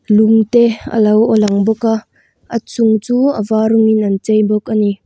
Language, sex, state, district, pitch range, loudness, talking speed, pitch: Mizo, female, Mizoram, Aizawl, 210-225 Hz, -13 LUFS, 215 wpm, 220 Hz